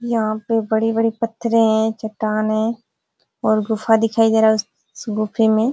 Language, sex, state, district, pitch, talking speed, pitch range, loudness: Hindi, female, Uttar Pradesh, Ghazipur, 220 Hz, 180 wpm, 215-225 Hz, -18 LUFS